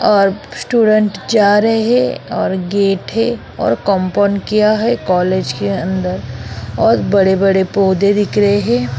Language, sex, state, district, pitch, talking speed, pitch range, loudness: Hindi, female, Goa, North and South Goa, 200 Hz, 140 wpm, 185-215 Hz, -14 LUFS